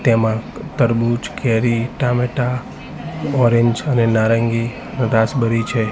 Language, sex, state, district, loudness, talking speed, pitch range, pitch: Gujarati, male, Gujarat, Gandhinagar, -18 LUFS, 90 wpm, 115-125 Hz, 120 Hz